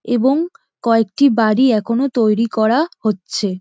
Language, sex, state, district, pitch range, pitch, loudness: Bengali, female, West Bengal, Dakshin Dinajpur, 220-270 Hz, 230 Hz, -16 LUFS